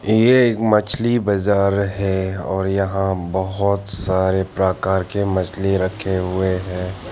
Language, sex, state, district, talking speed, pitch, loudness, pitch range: Hindi, male, Arunachal Pradesh, Papum Pare, 125 wpm, 95 Hz, -19 LUFS, 95-100 Hz